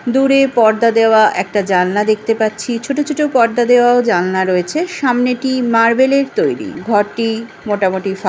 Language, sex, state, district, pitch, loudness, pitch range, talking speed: Bengali, female, West Bengal, Jhargram, 230 Hz, -14 LUFS, 205-260 Hz, 150 wpm